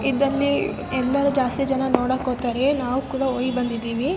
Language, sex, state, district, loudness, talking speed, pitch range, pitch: Kannada, male, Karnataka, Raichur, -22 LUFS, 115 wpm, 250-275 Hz, 260 Hz